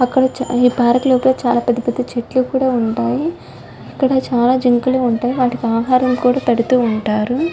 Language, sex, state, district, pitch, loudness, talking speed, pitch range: Telugu, female, Andhra Pradesh, Chittoor, 250 Hz, -16 LUFS, 150 wpm, 240-255 Hz